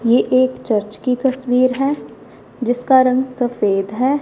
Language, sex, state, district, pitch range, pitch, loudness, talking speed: Hindi, female, Punjab, Fazilka, 240-260 Hz, 255 Hz, -17 LUFS, 140 wpm